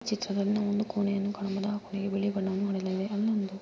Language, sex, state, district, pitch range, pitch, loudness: Kannada, female, Karnataka, Mysore, 195-205 Hz, 200 Hz, -31 LUFS